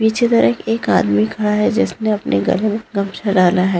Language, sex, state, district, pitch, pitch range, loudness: Hindi, female, Bihar, Jahanabad, 210 Hz, 180-220 Hz, -16 LUFS